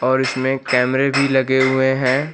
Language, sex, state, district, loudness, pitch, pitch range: Hindi, male, Uttar Pradesh, Lucknow, -17 LUFS, 130 Hz, 130-135 Hz